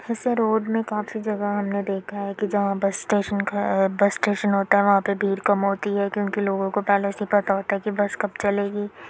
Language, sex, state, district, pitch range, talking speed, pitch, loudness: Hindi, female, Uttar Pradesh, Jyotiba Phule Nagar, 200-210 Hz, 235 wpm, 200 Hz, -23 LUFS